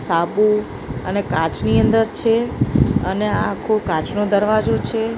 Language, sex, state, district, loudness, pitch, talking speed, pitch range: Gujarati, female, Maharashtra, Mumbai Suburban, -18 LUFS, 205 Hz, 125 wpm, 170-220 Hz